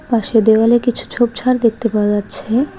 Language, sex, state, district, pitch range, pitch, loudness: Bengali, female, West Bengal, Alipurduar, 220-245 Hz, 230 Hz, -15 LUFS